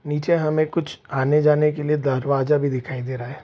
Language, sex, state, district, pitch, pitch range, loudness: Hindi, male, Bihar, Saharsa, 150 Hz, 135-150 Hz, -21 LUFS